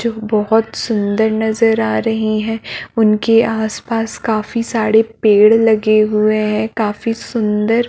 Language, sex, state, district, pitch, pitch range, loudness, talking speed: Hindi, female, Chhattisgarh, Balrampur, 220 Hz, 215-225 Hz, -15 LUFS, 130 wpm